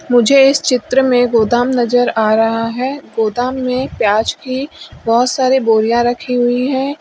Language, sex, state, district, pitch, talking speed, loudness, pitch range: Hindi, female, Uttar Pradesh, Lalitpur, 245 Hz, 165 wpm, -14 LUFS, 230-260 Hz